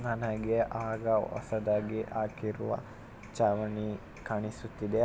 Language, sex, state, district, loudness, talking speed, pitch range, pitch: Kannada, male, Karnataka, Mysore, -33 LUFS, 70 wpm, 105-115 Hz, 110 Hz